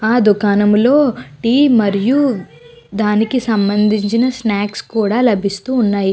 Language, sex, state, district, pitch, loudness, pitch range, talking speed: Telugu, female, Andhra Pradesh, Guntur, 215 Hz, -14 LUFS, 205-245 Hz, 100 wpm